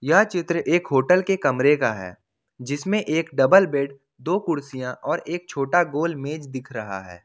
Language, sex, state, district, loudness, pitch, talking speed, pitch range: Hindi, male, Jharkhand, Ranchi, -22 LUFS, 145 Hz, 180 wpm, 130-175 Hz